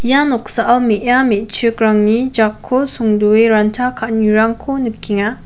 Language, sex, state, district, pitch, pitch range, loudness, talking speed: Garo, female, Meghalaya, West Garo Hills, 225 Hz, 215-250 Hz, -14 LUFS, 100 wpm